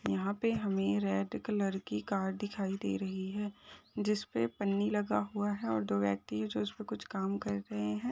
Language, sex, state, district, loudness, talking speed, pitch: Hindi, female, Jharkhand, Sahebganj, -35 LUFS, 190 wpm, 190 Hz